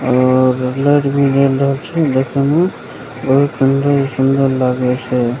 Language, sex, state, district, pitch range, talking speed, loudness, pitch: Maithili, male, Bihar, Begusarai, 130-140 Hz, 135 wpm, -14 LUFS, 135 Hz